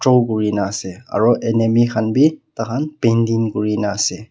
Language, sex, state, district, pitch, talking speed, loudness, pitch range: Nagamese, male, Nagaland, Kohima, 115 Hz, 165 wpm, -18 LUFS, 105-120 Hz